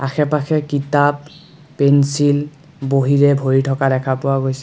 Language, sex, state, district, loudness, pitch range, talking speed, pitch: Assamese, male, Assam, Kamrup Metropolitan, -16 LUFS, 135-150 Hz, 115 wpm, 140 Hz